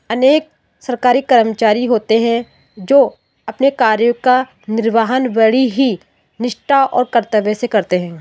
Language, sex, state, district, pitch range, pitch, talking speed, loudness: Hindi, female, Rajasthan, Jaipur, 220-255 Hz, 240 Hz, 130 wpm, -14 LUFS